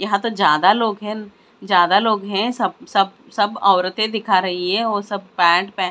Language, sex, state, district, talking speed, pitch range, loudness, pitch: Hindi, female, Maharashtra, Mumbai Suburban, 205 wpm, 190-220 Hz, -18 LUFS, 200 Hz